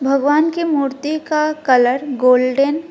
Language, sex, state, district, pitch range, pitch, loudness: Hindi, female, West Bengal, Alipurduar, 265-305 Hz, 285 Hz, -16 LUFS